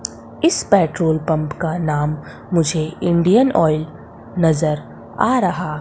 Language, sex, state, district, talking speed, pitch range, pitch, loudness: Hindi, female, Madhya Pradesh, Umaria, 115 wpm, 155-180 Hz, 160 Hz, -18 LUFS